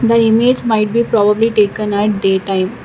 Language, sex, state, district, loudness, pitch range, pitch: English, female, Karnataka, Bangalore, -13 LUFS, 205-230 Hz, 215 Hz